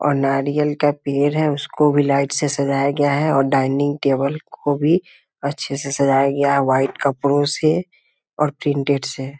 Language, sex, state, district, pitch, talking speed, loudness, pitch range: Hindi, male, Bihar, Muzaffarpur, 140 Hz, 185 wpm, -19 LUFS, 140-145 Hz